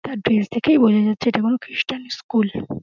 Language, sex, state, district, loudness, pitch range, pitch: Bengali, female, West Bengal, Dakshin Dinajpur, -19 LUFS, 215-255 Hz, 235 Hz